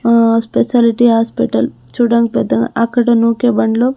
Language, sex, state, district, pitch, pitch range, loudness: Telugu, female, Andhra Pradesh, Sri Satya Sai, 230 Hz, 230-240 Hz, -13 LUFS